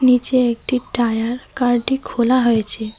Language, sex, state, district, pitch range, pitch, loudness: Bengali, female, West Bengal, Cooch Behar, 230-255 Hz, 245 Hz, -18 LUFS